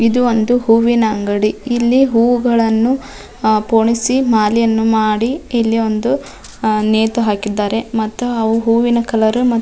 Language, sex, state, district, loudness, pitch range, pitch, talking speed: Kannada, female, Karnataka, Dharwad, -14 LUFS, 220-240 Hz, 230 Hz, 105 wpm